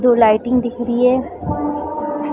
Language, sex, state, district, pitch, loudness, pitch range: Hindi, female, Chhattisgarh, Balrampur, 250 Hz, -17 LUFS, 240-295 Hz